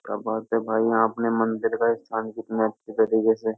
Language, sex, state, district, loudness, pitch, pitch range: Hindi, male, Uttar Pradesh, Jyotiba Phule Nagar, -24 LUFS, 110 Hz, 110-115 Hz